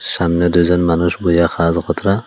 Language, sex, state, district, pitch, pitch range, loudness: Bengali, male, Assam, Hailakandi, 85 Hz, 85-90 Hz, -15 LUFS